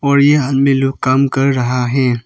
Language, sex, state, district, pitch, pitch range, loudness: Hindi, male, Arunachal Pradesh, Papum Pare, 135 Hz, 130-140 Hz, -14 LUFS